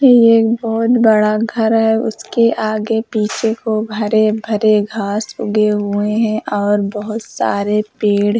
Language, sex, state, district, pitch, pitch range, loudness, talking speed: Hindi, female, Uttar Pradesh, Hamirpur, 215 Hz, 210-225 Hz, -15 LUFS, 145 wpm